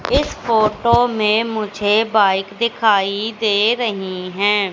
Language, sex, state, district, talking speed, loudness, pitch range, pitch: Hindi, female, Madhya Pradesh, Katni, 115 wpm, -17 LUFS, 200-225 Hz, 215 Hz